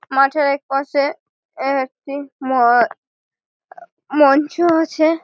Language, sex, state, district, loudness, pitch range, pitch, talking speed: Bengali, female, West Bengal, Malda, -17 LUFS, 275-325 Hz, 285 Hz, 90 wpm